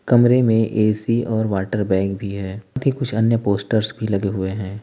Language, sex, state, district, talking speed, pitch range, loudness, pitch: Hindi, male, Uttar Pradesh, Lalitpur, 185 wpm, 100-115 Hz, -20 LUFS, 110 Hz